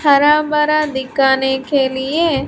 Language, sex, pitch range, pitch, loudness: Hindi, female, 265-300 Hz, 280 Hz, -15 LUFS